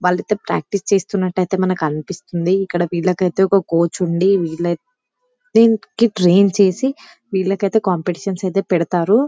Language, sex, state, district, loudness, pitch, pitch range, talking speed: Telugu, female, Telangana, Karimnagar, -17 LUFS, 190 Hz, 180-205 Hz, 105 wpm